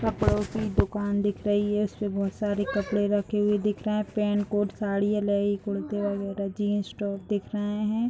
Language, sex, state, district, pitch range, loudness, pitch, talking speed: Hindi, female, Bihar, Vaishali, 205-210 Hz, -27 LUFS, 205 Hz, 195 wpm